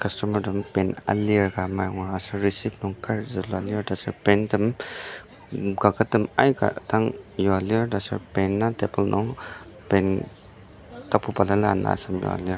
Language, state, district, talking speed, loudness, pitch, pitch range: Ao, Nagaland, Dimapur, 160 wpm, -24 LUFS, 100 Hz, 95-105 Hz